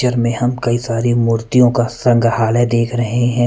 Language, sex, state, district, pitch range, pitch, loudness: Hindi, male, Punjab, Kapurthala, 115-120 Hz, 120 Hz, -15 LUFS